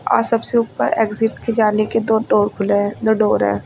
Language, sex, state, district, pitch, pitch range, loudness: Hindi, female, Uttar Pradesh, Lucknow, 220 Hz, 205-225 Hz, -17 LUFS